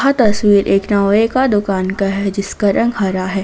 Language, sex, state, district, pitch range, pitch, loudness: Hindi, female, Jharkhand, Ranchi, 195-215 Hz, 200 Hz, -15 LUFS